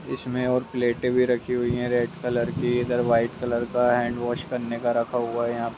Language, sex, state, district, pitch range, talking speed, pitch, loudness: Hindi, male, Bihar, Jamui, 120-125 Hz, 240 wpm, 120 Hz, -25 LUFS